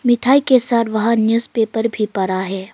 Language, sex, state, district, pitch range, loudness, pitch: Hindi, female, Arunachal Pradesh, Longding, 215-235 Hz, -16 LUFS, 225 Hz